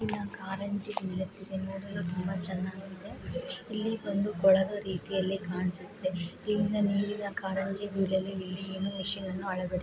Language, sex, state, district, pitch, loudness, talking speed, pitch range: Kannada, female, Karnataka, Chamarajanagar, 195 Hz, -33 LUFS, 65 wpm, 185-200 Hz